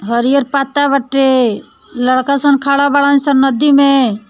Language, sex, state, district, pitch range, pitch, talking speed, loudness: Bhojpuri, female, Bihar, East Champaran, 255-280 Hz, 275 Hz, 140 wpm, -12 LUFS